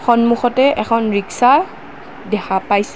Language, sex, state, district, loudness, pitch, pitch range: Assamese, female, Assam, Kamrup Metropolitan, -15 LUFS, 230 Hz, 205-245 Hz